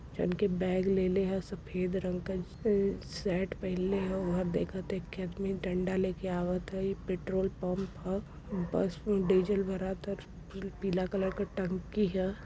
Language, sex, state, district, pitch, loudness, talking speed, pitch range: Hindi, female, Uttar Pradesh, Varanasi, 190 Hz, -33 LUFS, 180 wpm, 185-195 Hz